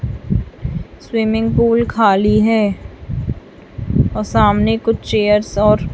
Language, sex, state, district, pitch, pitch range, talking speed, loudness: Hindi, female, Chhattisgarh, Raipur, 215 Hz, 210-225 Hz, 90 wpm, -16 LUFS